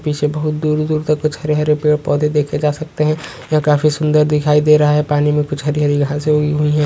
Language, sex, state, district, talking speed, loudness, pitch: Hindi, male, Maharashtra, Aurangabad, 235 wpm, -16 LUFS, 150 Hz